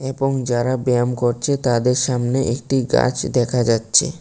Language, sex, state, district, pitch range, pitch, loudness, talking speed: Bengali, male, Tripura, West Tripura, 120-135 Hz, 125 Hz, -19 LUFS, 140 wpm